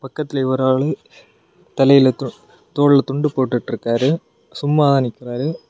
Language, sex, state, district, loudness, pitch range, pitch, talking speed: Tamil, male, Tamil Nadu, Kanyakumari, -17 LUFS, 130-145 Hz, 135 Hz, 95 wpm